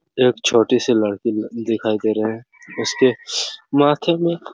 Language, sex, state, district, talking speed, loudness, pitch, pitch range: Hindi, male, Chhattisgarh, Raigarh, 170 wpm, -19 LUFS, 115 Hz, 110-130 Hz